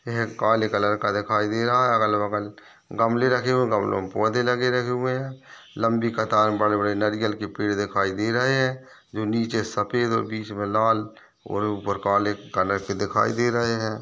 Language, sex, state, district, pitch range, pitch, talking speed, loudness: Hindi, male, Chhattisgarh, Balrampur, 105-120 Hz, 110 Hz, 210 wpm, -23 LUFS